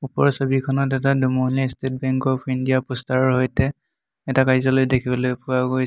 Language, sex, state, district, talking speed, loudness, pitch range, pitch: Assamese, male, Assam, Hailakandi, 155 wpm, -21 LUFS, 130-135 Hz, 130 Hz